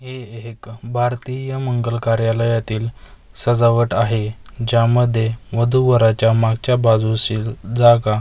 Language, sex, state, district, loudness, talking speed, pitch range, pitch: Marathi, male, Maharashtra, Mumbai Suburban, -17 LUFS, 110 wpm, 115-120 Hz, 115 Hz